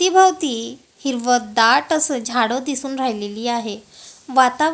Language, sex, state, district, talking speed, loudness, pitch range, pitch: Marathi, female, Maharashtra, Gondia, 125 wpm, -19 LUFS, 235-290 Hz, 260 Hz